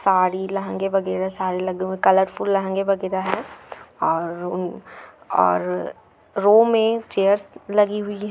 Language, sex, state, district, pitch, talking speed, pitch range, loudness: Hindi, female, Bihar, Gaya, 190 Hz, 130 wpm, 180-200 Hz, -21 LUFS